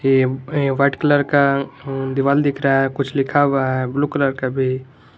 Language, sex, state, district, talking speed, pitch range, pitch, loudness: Hindi, male, Jharkhand, Garhwa, 195 wpm, 135-140 Hz, 135 Hz, -18 LUFS